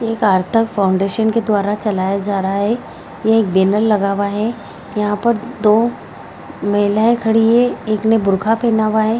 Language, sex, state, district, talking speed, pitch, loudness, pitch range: Hindi, female, Bihar, Jahanabad, 175 wpm, 215 Hz, -16 LUFS, 200-225 Hz